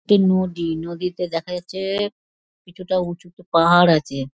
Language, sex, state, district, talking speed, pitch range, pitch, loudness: Bengali, female, West Bengal, Dakshin Dinajpur, 150 wpm, 170-185 Hz, 180 Hz, -20 LUFS